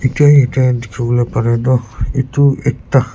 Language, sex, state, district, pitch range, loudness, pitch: Nagamese, male, Nagaland, Kohima, 120-135 Hz, -14 LUFS, 125 Hz